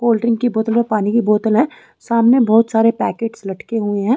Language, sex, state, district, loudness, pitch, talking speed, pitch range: Hindi, female, Chhattisgarh, Rajnandgaon, -16 LUFS, 225 Hz, 230 wpm, 220-235 Hz